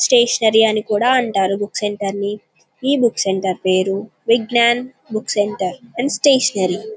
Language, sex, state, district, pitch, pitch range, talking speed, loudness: Telugu, female, Telangana, Karimnagar, 215 Hz, 195-240 Hz, 145 wpm, -17 LUFS